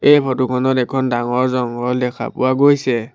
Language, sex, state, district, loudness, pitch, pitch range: Assamese, male, Assam, Sonitpur, -17 LUFS, 130 Hz, 125-130 Hz